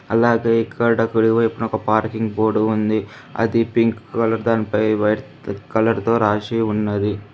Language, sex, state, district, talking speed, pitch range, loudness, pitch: Telugu, female, Telangana, Hyderabad, 130 wpm, 110-115 Hz, -19 LUFS, 110 Hz